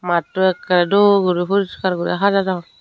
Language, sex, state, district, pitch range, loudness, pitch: Chakma, female, Tripura, Unakoti, 175-200 Hz, -17 LUFS, 185 Hz